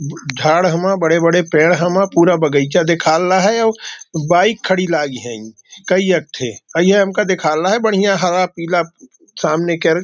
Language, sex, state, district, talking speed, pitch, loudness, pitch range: Hindi, male, Maharashtra, Nagpur, 155 wpm, 175 Hz, -15 LUFS, 155-190 Hz